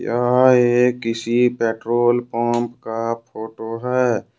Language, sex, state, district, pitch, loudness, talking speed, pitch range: Hindi, male, Jharkhand, Ranchi, 120 Hz, -19 LUFS, 110 wpm, 115-125 Hz